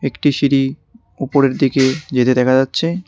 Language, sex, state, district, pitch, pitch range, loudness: Bengali, male, West Bengal, Cooch Behar, 135 Hz, 130-145 Hz, -15 LUFS